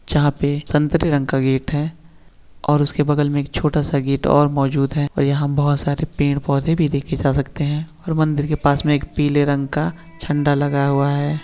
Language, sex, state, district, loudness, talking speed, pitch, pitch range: Hindi, male, Uttar Pradesh, Hamirpur, -19 LUFS, 220 wpm, 145 Hz, 140-150 Hz